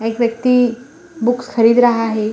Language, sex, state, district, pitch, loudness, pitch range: Hindi, female, Bihar, Gaya, 240 Hz, -15 LUFS, 230-250 Hz